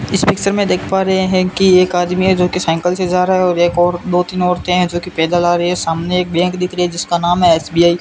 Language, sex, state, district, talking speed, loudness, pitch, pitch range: Hindi, male, Rajasthan, Bikaner, 285 wpm, -14 LUFS, 180 Hz, 175-185 Hz